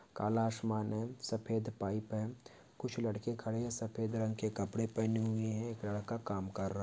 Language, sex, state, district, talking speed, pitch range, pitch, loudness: Hindi, male, Uttar Pradesh, Varanasi, 200 wpm, 105-115 Hz, 110 Hz, -38 LUFS